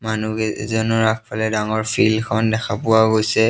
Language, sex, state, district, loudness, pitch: Assamese, male, Assam, Sonitpur, -19 LUFS, 110 Hz